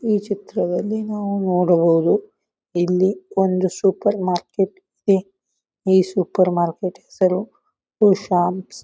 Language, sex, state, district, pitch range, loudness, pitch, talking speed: Kannada, male, Karnataka, Bijapur, 180-210 Hz, -20 LUFS, 190 Hz, 95 wpm